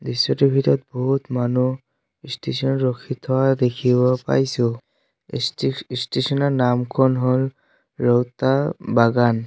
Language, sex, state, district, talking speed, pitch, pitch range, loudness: Assamese, male, Assam, Sonitpur, 110 wpm, 125 Hz, 120-135 Hz, -20 LUFS